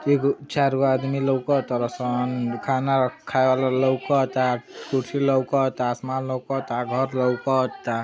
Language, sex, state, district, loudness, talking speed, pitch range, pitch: Bhojpuri, male, Uttar Pradesh, Ghazipur, -23 LUFS, 95 wpm, 125-135 Hz, 130 Hz